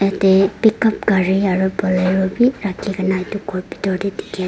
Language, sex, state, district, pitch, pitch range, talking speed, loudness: Nagamese, female, Nagaland, Dimapur, 195 Hz, 190-200 Hz, 175 wpm, -18 LUFS